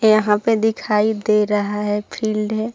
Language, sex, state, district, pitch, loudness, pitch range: Hindi, female, Bihar, Saharsa, 215 Hz, -19 LUFS, 210-220 Hz